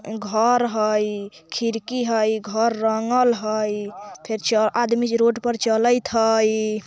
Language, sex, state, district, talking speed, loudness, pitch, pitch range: Bajjika, female, Bihar, Vaishali, 115 wpm, -21 LUFS, 220 Hz, 215-235 Hz